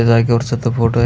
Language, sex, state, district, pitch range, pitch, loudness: Marathi, male, Maharashtra, Aurangabad, 115-120 Hz, 120 Hz, -16 LUFS